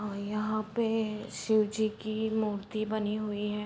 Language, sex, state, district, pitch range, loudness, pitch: Hindi, female, Bihar, Muzaffarpur, 210-220 Hz, -31 LUFS, 215 Hz